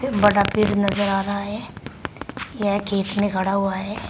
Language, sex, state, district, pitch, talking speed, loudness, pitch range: Hindi, female, Uttar Pradesh, Shamli, 200 Hz, 175 wpm, -22 LUFS, 195-205 Hz